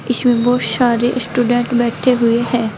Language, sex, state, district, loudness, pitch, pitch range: Hindi, female, Uttar Pradesh, Saharanpur, -15 LUFS, 245 Hz, 235-245 Hz